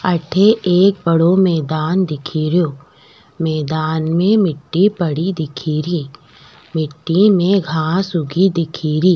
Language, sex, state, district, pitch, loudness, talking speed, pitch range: Rajasthani, female, Rajasthan, Nagaur, 165 Hz, -16 LUFS, 100 wpm, 155-185 Hz